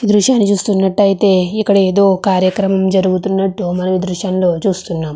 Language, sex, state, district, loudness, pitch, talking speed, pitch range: Telugu, female, Andhra Pradesh, Chittoor, -14 LUFS, 190 Hz, 140 wpm, 185-200 Hz